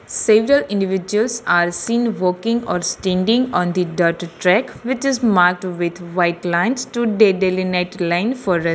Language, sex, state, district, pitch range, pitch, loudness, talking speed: English, female, Telangana, Hyderabad, 175-230 Hz, 185 Hz, -18 LUFS, 160 wpm